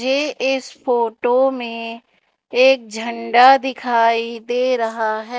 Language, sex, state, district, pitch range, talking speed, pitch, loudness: Hindi, female, Madhya Pradesh, Umaria, 230-260 Hz, 110 wpm, 245 Hz, -17 LUFS